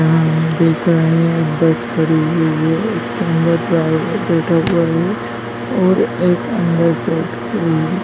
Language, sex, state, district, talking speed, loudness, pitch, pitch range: Hindi, male, Bihar, Begusarai, 110 wpm, -16 LUFS, 165 Hz, 160-170 Hz